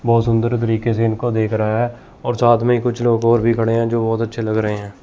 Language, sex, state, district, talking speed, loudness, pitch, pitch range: Hindi, male, Chandigarh, Chandigarh, 275 wpm, -18 LUFS, 115 Hz, 115-120 Hz